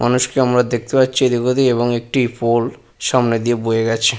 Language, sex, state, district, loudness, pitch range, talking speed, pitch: Bengali, male, West Bengal, Purulia, -17 LUFS, 115-125 Hz, 185 wpm, 120 Hz